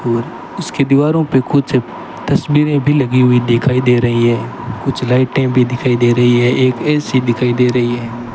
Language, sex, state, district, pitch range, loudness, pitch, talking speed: Hindi, male, Rajasthan, Bikaner, 120-135 Hz, -14 LUFS, 125 Hz, 185 wpm